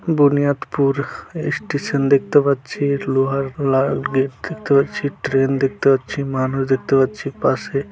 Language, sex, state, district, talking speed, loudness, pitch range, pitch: Bengali, male, West Bengal, Dakshin Dinajpur, 120 wpm, -19 LUFS, 135-140 Hz, 135 Hz